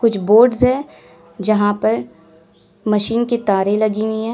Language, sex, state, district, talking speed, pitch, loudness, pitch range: Hindi, female, Uttar Pradesh, Lalitpur, 150 wpm, 210 Hz, -16 LUFS, 190-230 Hz